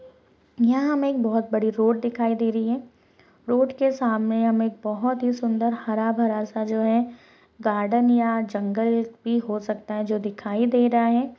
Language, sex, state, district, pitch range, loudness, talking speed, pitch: Hindi, female, Rajasthan, Churu, 220-240 Hz, -23 LUFS, 175 wpm, 230 Hz